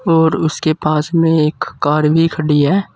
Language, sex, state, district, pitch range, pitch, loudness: Hindi, male, Uttar Pradesh, Saharanpur, 150-165 Hz, 155 Hz, -14 LUFS